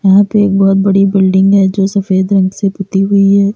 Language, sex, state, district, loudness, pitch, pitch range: Hindi, female, Uttar Pradesh, Lalitpur, -10 LUFS, 195 Hz, 195-200 Hz